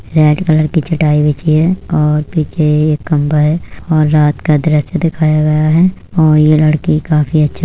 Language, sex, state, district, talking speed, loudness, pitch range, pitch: Hindi, female, Uttar Pradesh, Budaun, 180 wpm, -12 LUFS, 150-160 Hz, 155 Hz